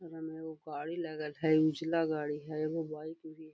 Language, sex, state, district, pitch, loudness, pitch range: Magahi, female, Bihar, Gaya, 160 Hz, -35 LUFS, 155-160 Hz